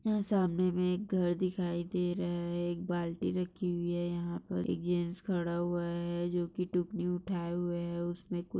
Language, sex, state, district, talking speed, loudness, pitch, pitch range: Hindi, female, Maharashtra, Sindhudurg, 200 wpm, -34 LUFS, 175 Hz, 175-180 Hz